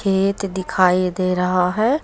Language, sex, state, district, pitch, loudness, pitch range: Hindi, female, Jharkhand, Deoghar, 185 Hz, -19 LUFS, 180-195 Hz